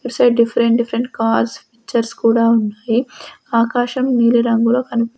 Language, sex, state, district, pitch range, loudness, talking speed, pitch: Telugu, female, Andhra Pradesh, Sri Satya Sai, 230-245 Hz, -16 LUFS, 125 wpm, 235 Hz